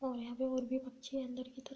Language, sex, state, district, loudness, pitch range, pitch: Hindi, female, Uttar Pradesh, Deoria, -40 LUFS, 255-260 Hz, 260 Hz